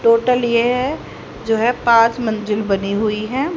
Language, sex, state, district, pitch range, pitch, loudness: Hindi, female, Haryana, Charkhi Dadri, 215-245 Hz, 230 Hz, -17 LUFS